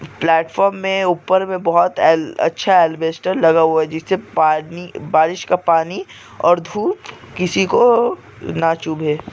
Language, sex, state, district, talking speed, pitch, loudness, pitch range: Hindi, male, Andhra Pradesh, Chittoor, 135 wpm, 170 Hz, -16 LUFS, 160-190 Hz